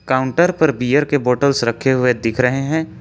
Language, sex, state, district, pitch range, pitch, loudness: Hindi, male, Jharkhand, Ranchi, 125-145 Hz, 130 Hz, -16 LUFS